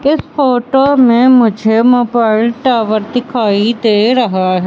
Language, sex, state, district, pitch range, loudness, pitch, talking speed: Hindi, female, Madhya Pradesh, Katni, 220-250 Hz, -11 LUFS, 235 Hz, 115 wpm